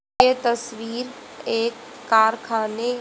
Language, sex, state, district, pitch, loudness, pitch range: Hindi, female, Haryana, Rohtak, 235 Hz, -22 LUFS, 225-245 Hz